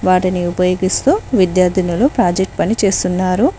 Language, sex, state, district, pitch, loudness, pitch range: Telugu, female, Telangana, Mahabubabad, 185 Hz, -15 LUFS, 180-200 Hz